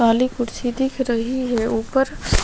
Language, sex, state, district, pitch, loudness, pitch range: Hindi, female, Chhattisgarh, Sukma, 245 Hz, -21 LUFS, 230-260 Hz